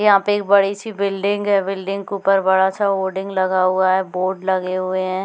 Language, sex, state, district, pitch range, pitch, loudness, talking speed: Hindi, female, Chhattisgarh, Bilaspur, 185-200 Hz, 195 Hz, -18 LUFS, 230 wpm